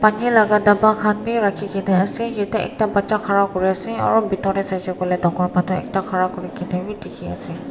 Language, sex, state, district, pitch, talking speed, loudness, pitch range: Nagamese, female, Nagaland, Kohima, 200 Hz, 200 wpm, -19 LUFS, 185-215 Hz